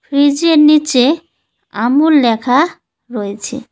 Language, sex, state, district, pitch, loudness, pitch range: Bengali, female, West Bengal, Cooch Behar, 280 Hz, -12 LUFS, 245-300 Hz